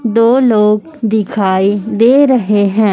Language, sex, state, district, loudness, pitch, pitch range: Hindi, female, Chhattisgarh, Raipur, -11 LUFS, 220 Hz, 205-240 Hz